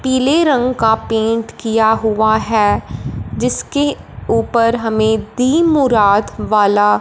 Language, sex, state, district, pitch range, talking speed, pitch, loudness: Hindi, female, Punjab, Fazilka, 220-255 Hz, 110 wpm, 225 Hz, -15 LUFS